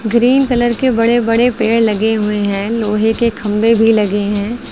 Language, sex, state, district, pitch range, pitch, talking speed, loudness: Hindi, female, Uttar Pradesh, Lucknow, 210-235 Hz, 225 Hz, 190 wpm, -14 LUFS